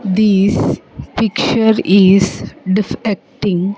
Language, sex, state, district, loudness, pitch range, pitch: English, female, Andhra Pradesh, Sri Satya Sai, -14 LUFS, 190-215 Hz, 200 Hz